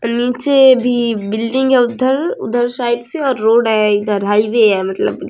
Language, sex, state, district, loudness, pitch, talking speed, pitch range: Hindi, female, Bihar, Vaishali, -14 LUFS, 235 Hz, 145 wpm, 215-255 Hz